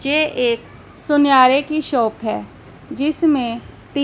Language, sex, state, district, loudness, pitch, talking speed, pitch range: Hindi, female, Punjab, Pathankot, -17 LUFS, 270 Hz, 120 wpm, 230-295 Hz